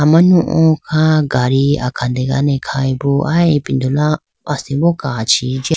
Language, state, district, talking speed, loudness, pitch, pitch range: Idu Mishmi, Arunachal Pradesh, Lower Dibang Valley, 115 wpm, -15 LUFS, 145 Hz, 130-155 Hz